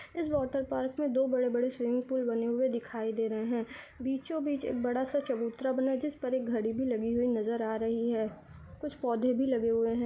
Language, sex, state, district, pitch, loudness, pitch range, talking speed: Hindi, female, Telangana, Karimnagar, 250 Hz, -32 LUFS, 230-265 Hz, 235 wpm